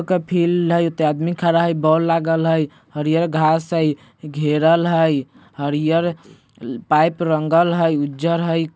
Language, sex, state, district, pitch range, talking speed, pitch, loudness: Bajjika, male, Bihar, Vaishali, 155-170 Hz, 135 wpm, 165 Hz, -18 LUFS